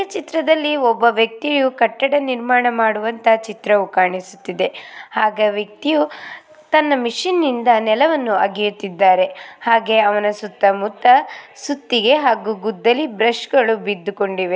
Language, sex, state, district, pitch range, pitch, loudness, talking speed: Kannada, female, Karnataka, Mysore, 210-270 Hz, 225 Hz, -17 LUFS, 105 wpm